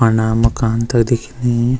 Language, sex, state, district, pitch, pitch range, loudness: Garhwali, male, Uttarakhand, Uttarkashi, 115 Hz, 115-120 Hz, -16 LUFS